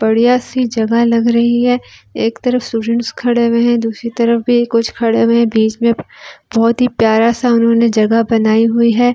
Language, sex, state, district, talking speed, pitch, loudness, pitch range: Hindi, female, Delhi, New Delhi, 185 wpm, 235 Hz, -13 LUFS, 230-240 Hz